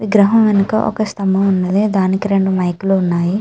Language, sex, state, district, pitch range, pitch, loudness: Telugu, female, Andhra Pradesh, Srikakulam, 190-210 Hz, 195 Hz, -15 LUFS